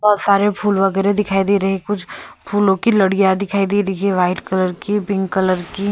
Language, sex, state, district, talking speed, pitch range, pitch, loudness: Hindi, female, Goa, North and South Goa, 235 wpm, 190-205 Hz, 195 Hz, -17 LUFS